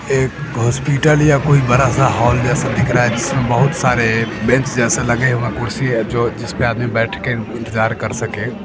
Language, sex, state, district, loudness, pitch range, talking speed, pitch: Hindi, male, Bihar, Sitamarhi, -16 LUFS, 115-135 Hz, 185 wpm, 120 Hz